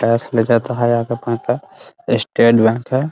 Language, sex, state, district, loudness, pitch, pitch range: Hindi, male, Bihar, Muzaffarpur, -16 LUFS, 115 Hz, 115-120 Hz